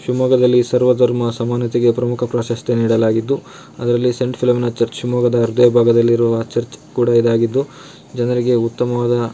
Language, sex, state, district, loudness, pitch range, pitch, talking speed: Kannada, male, Karnataka, Shimoga, -16 LUFS, 115-125 Hz, 120 Hz, 120 wpm